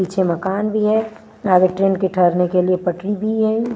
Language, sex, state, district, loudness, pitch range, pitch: Hindi, female, Bihar, Kaimur, -18 LUFS, 180-215 Hz, 195 Hz